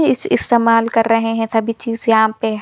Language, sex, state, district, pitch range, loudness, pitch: Hindi, female, Chhattisgarh, Bilaspur, 225-230 Hz, -15 LUFS, 225 Hz